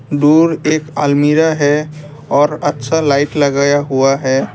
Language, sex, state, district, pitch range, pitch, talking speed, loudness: Hindi, male, Assam, Kamrup Metropolitan, 140-150 Hz, 145 Hz, 130 wpm, -13 LUFS